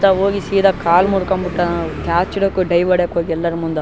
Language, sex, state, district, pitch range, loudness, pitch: Kannada, male, Karnataka, Raichur, 170-195 Hz, -16 LUFS, 180 Hz